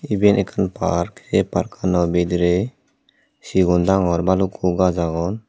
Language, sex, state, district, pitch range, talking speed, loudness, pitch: Chakma, male, Tripura, Dhalai, 90-100 Hz, 120 wpm, -19 LUFS, 95 Hz